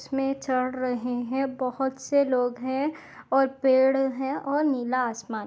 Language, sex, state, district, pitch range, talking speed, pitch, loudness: Hindi, female, Goa, North and South Goa, 250-270 Hz, 155 wpm, 265 Hz, -26 LUFS